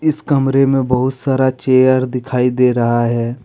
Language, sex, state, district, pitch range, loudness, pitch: Hindi, male, Jharkhand, Deoghar, 125-135 Hz, -15 LUFS, 130 Hz